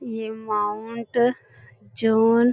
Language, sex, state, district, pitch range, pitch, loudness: Hindi, female, Bihar, Bhagalpur, 210-235 Hz, 220 Hz, -23 LUFS